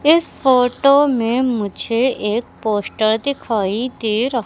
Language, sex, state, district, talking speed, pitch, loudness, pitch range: Hindi, female, Madhya Pradesh, Katni, 120 wpm, 240 Hz, -17 LUFS, 220-260 Hz